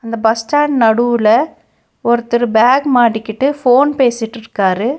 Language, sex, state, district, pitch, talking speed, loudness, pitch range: Tamil, female, Tamil Nadu, Nilgiris, 235 Hz, 110 wpm, -13 LUFS, 225-260 Hz